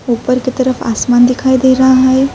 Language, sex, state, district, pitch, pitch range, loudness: Urdu, female, Uttar Pradesh, Budaun, 255 Hz, 245-260 Hz, -11 LUFS